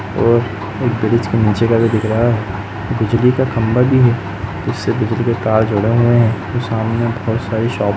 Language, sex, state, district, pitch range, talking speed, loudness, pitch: Hindi, male, Uttar Pradesh, Jalaun, 110-115 Hz, 210 wpm, -16 LUFS, 115 Hz